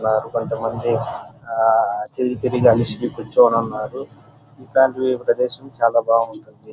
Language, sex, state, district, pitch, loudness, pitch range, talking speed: Telugu, male, Andhra Pradesh, Chittoor, 120 Hz, -19 LUFS, 115-130 Hz, 100 wpm